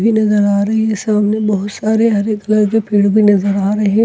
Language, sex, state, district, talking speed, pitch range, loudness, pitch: Hindi, female, Bihar, Katihar, 235 wpm, 205-220 Hz, -14 LUFS, 210 Hz